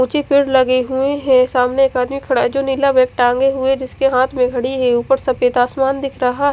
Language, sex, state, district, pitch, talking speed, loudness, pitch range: Hindi, female, Odisha, Khordha, 260 Hz, 230 wpm, -15 LUFS, 250-270 Hz